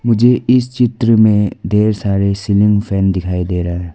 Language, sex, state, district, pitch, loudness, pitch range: Hindi, female, Arunachal Pradesh, Lower Dibang Valley, 105 Hz, -14 LUFS, 95-115 Hz